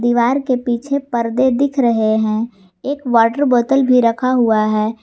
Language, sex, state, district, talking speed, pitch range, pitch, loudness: Hindi, female, Jharkhand, Garhwa, 165 wpm, 225-260 Hz, 240 Hz, -16 LUFS